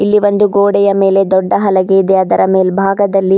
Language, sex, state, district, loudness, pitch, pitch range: Kannada, female, Karnataka, Bidar, -11 LUFS, 195 Hz, 190-200 Hz